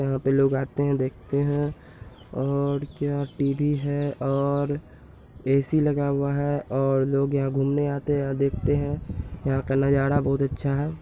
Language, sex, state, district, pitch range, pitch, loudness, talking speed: Hindi, male, Bihar, Purnia, 135-145 Hz, 140 Hz, -25 LUFS, 165 wpm